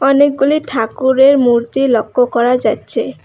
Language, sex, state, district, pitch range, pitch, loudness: Bengali, female, West Bengal, Alipurduar, 235-275 Hz, 260 Hz, -13 LUFS